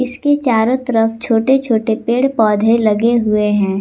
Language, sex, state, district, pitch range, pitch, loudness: Hindi, female, Jharkhand, Palamu, 220-250 Hz, 225 Hz, -14 LUFS